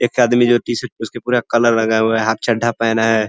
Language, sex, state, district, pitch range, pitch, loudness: Hindi, male, Uttar Pradesh, Ghazipur, 110-120 Hz, 115 Hz, -16 LUFS